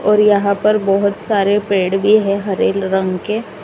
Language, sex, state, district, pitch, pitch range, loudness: Hindi, female, Uttar Pradesh, Lalitpur, 200 Hz, 195-210 Hz, -15 LUFS